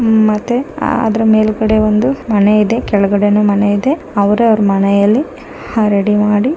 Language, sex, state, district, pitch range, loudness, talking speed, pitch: Kannada, female, Karnataka, Mysore, 205-230 Hz, -12 LUFS, 145 wpm, 215 Hz